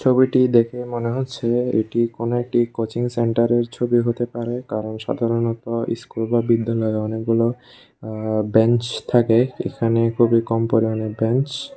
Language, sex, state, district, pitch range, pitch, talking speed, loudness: Bengali, male, Tripura, West Tripura, 115-120 Hz, 115 Hz, 130 wpm, -20 LUFS